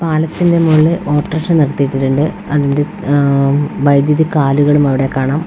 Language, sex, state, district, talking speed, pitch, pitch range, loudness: Malayalam, female, Kerala, Wayanad, 145 wpm, 145 Hz, 140-160 Hz, -13 LUFS